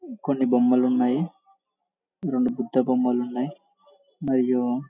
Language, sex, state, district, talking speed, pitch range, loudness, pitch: Telugu, male, Telangana, Karimnagar, 100 wpm, 125-190 Hz, -24 LUFS, 130 Hz